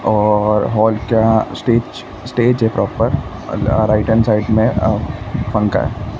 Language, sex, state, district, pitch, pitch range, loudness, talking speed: Hindi, male, Maharashtra, Mumbai Suburban, 110 Hz, 105-115 Hz, -16 LUFS, 145 wpm